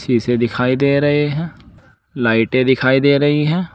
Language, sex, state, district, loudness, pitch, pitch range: Hindi, male, Uttar Pradesh, Saharanpur, -15 LUFS, 130 Hz, 120-145 Hz